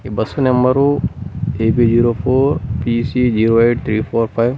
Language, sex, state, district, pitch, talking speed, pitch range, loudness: Telugu, male, Andhra Pradesh, Annamaya, 120 Hz, 170 wpm, 115-130 Hz, -16 LUFS